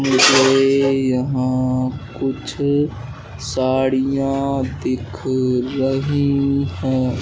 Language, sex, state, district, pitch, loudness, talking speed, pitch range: Hindi, male, Madhya Pradesh, Dhar, 130 Hz, -18 LUFS, 60 wpm, 130-135 Hz